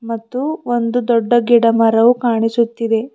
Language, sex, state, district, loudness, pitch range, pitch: Kannada, female, Karnataka, Bidar, -15 LUFS, 230-245 Hz, 235 Hz